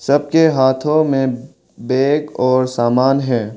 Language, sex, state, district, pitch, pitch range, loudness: Hindi, male, Arunachal Pradesh, Longding, 130 Hz, 125-145 Hz, -15 LUFS